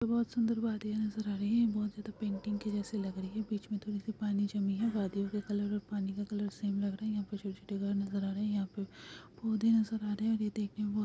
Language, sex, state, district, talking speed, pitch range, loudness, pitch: Hindi, female, Uttar Pradesh, Hamirpur, 255 wpm, 200-215 Hz, -35 LUFS, 210 Hz